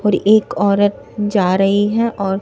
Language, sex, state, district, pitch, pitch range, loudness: Hindi, female, Bihar, Katihar, 205 Hz, 195-210 Hz, -15 LUFS